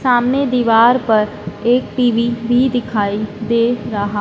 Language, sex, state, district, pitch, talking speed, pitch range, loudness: Hindi, female, Madhya Pradesh, Dhar, 235 Hz, 130 wpm, 215-245 Hz, -16 LUFS